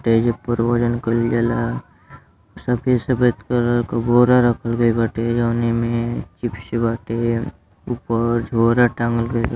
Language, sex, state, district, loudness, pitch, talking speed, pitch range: Bhojpuri, male, Uttar Pradesh, Deoria, -19 LUFS, 115 Hz, 140 wpm, 115-120 Hz